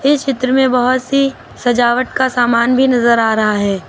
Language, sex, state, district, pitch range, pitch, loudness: Hindi, female, Uttar Pradesh, Lucknow, 235-265 Hz, 250 Hz, -14 LUFS